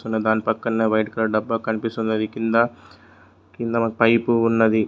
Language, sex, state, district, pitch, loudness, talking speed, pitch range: Telugu, male, Telangana, Mahabubabad, 110 Hz, -21 LUFS, 110 wpm, 110-115 Hz